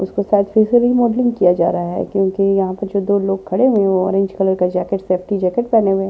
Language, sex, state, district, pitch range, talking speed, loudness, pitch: Hindi, male, Maharashtra, Washim, 185-205 Hz, 275 wpm, -16 LUFS, 195 Hz